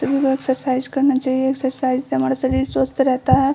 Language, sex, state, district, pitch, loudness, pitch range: Hindi, female, Bihar, Samastipur, 265 Hz, -19 LUFS, 260-270 Hz